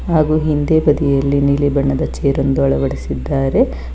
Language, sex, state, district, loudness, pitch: Kannada, female, Karnataka, Bangalore, -16 LUFS, 140 Hz